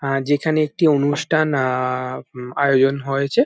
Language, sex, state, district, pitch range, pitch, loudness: Bengali, male, West Bengal, Jalpaiguri, 130-145 Hz, 140 Hz, -19 LUFS